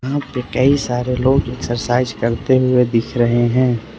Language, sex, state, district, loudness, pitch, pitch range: Hindi, male, Arunachal Pradesh, Lower Dibang Valley, -17 LUFS, 125 Hz, 120-130 Hz